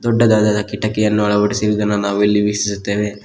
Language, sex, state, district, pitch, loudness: Kannada, male, Karnataka, Koppal, 105 Hz, -16 LUFS